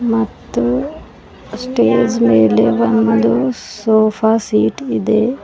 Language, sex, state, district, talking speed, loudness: Kannada, female, Karnataka, Bidar, 75 wpm, -14 LUFS